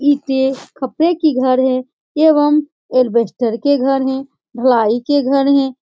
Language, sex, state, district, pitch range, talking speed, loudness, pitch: Hindi, female, Bihar, Supaul, 255-290 Hz, 145 wpm, -15 LUFS, 265 Hz